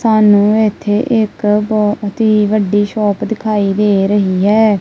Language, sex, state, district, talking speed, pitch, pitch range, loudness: Punjabi, female, Punjab, Kapurthala, 135 wpm, 210 Hz, 205-220 Hz, -13 LUFS